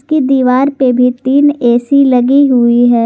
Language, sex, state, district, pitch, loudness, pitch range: Hindi, female, Jharkhand, Garhwa, 255 Hz, -10 LUFS, 245-280 Hz